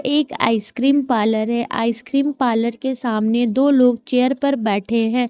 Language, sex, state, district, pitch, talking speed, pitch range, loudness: Hindi, female, Jharkhand, Ranchi, 240 Hz, 160 wpm, 230-270 Hz, -18 LUFS